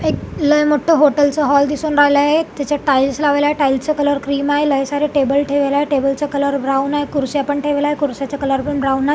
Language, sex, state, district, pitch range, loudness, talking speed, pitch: Marathi, female, Maharashtra, Solapur, 280-295 Hz, -16 LUFS, 255 wpm, 285 Hz